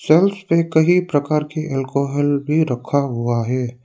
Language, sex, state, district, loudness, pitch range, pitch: Hindi, male, Arunachal Pradesh, Lower Dibang Valley, -18 LUFS, 130-160 Hz, 145 Hz